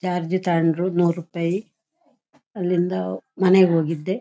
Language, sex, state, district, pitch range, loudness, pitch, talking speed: Kannada, female, Karnataka, Shimoga, 170-190 Hz, -21 LUFS, 180 Hz, 100 wpm